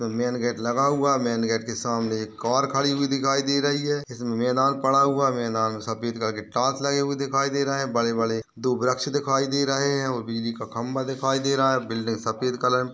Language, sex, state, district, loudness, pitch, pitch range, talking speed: Hindi, male, Uttar Pradesh, Ghazipur, -24 LUFS, 125 Hz, 115-140 Hz, 250 wpm